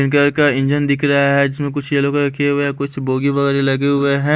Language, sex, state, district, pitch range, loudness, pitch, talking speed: Hindi, male, Haryana, Rohtak, 140-145 Hz, -16 LUFS, 140 Hz, 250 wpm